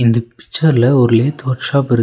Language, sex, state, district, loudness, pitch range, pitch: Tamil, male, Tamil Nadu, Nilgiris, -14 LUFS, 120-140 Hz, 125 Hz